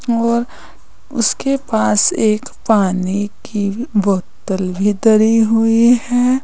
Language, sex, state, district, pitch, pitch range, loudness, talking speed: Hindi, female, Uttar Pradesh, Saharanpur, 220 Hz, 205-240 Hz, -15 LUFS, 100 wpm